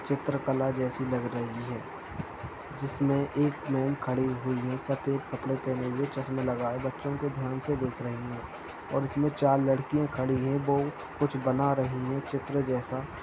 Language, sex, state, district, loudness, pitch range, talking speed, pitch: Hindi, male, Uttar Pradesh, Etah, -30 LUFS, 130-140 Hz, 180 wpm, 135 Hz